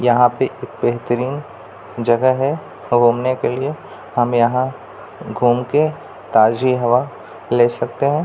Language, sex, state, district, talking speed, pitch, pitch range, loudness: Hindi, male, Bihar, Jamui, 140 wpm, 125 Hz, 120-135 Hz, -17 LUFS